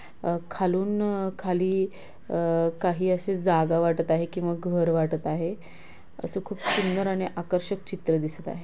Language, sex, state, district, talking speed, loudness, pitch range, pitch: Marathi, female, Maharashtra, Pune, 155 wpm, -27 LUFS, 165-190 Hz, 180 Hz